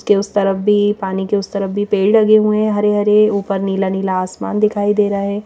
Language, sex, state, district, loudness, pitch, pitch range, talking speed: Hindi, female, Madhya Pradesh, Bhopal, -15 LUFS, 205 Hz, 195-210 Hz, 240 wpm